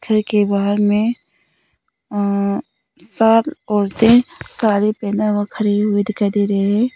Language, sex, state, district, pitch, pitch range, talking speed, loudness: Hindi, female, Nagaland, Kohima, 210 Hz, 205-225 Hz, 130 wpm, -17 LUFS